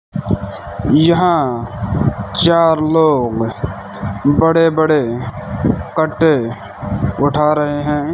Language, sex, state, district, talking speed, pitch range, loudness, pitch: Hindi, male, Rajasthan, Bikaner, 65 wpm, 115-160 Hz, -15 LUFS, 145 Hz